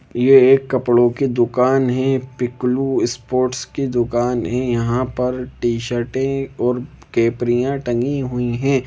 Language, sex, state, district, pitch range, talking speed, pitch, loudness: Hindi, male, Jharkhand, Jamtara, 120-135 Hz, 130 wpm, 125 Hz, -18 LUFS